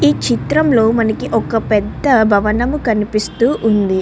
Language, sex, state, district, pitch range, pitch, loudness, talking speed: Telugu, female, Andhra Pradesh, Krishna, 210-250 Hz, 225 Hz, -15 LUFS, 120 wpm